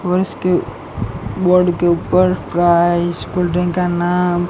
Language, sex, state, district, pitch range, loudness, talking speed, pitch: Hindi, male, Gujarat, Gandhinagar, 175-180 Hz, -16 LUFS, 135 wpm, 175 Hz